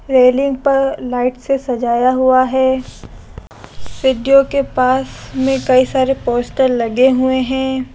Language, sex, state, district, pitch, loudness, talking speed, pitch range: Hindi, female, Rajasthan, Jaipur, 260 Hz, -15 LUFS, 120 wpm, 255-270 Hz